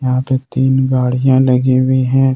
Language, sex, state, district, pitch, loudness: Hindi, male, Jharkhand, Ranchi, 130 Hz, -13 LUFS